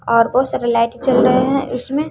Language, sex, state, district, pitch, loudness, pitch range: Hindi, female, Bihar, West Champaran, 255 Hz, -16 LUFS, 235-265 Hz